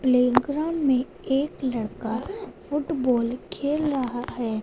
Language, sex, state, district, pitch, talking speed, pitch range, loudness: Hindi, female, Punjab, Fazilka, 265 Hz, 105 wpm, 245-295 Hz, -25 LUFS